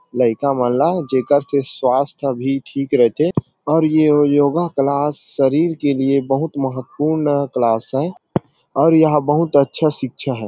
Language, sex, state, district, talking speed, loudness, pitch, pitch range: Chhattisgarhi, male, Chhattisgarh, Rajnandgaon, 155 wpm, -17 LUFS, 140 Hz, 135-155 Hz